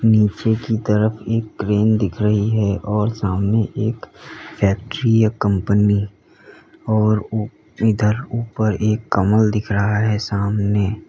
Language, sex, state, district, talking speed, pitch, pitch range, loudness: Hindi, male, Uttar Pradesh, Lalitpur, 125 wpm, 105 Hz, 105-110 Hz, -19 LUFS